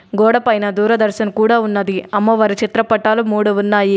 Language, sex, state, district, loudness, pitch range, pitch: Telugu, female, Telangana, Adilabad, -15 LUFS, 205-225 Hz, 215 Hz